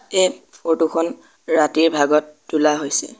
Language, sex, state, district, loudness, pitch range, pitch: Assamese, male, Assam, Sonitpur, -19 LUFS, 150-165 Hz, 155 Hz